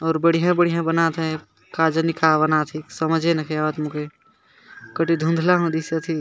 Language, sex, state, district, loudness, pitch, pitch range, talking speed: Sadri, male, Chhattisgarh, Jashpur, -21 LUFS, 160 Hz, 155-165 Hz, 155 wpm